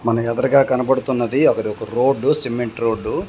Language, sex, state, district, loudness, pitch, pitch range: Telugu, male, Telangana, Komaram Bheem, -18 LUFS, 120 Hz, 115-135 Hz